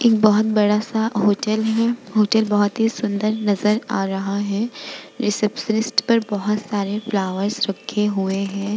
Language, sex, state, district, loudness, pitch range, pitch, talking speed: Hindi, female, Bihar, Vaishali, -20 LUFS, 205-220 Hz, 210 Hz, 155 wpm